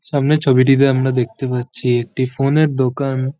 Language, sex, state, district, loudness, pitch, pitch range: Bengali, male, West Bengal, Jhargram, -16 LUFS, 130 Hz, 125-140 Hz